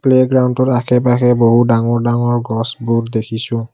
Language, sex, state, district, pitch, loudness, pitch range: Assamese, male, Assam, Kamrup Metropolitan, 120 Hz, -14 LUFS, 115-125 Hz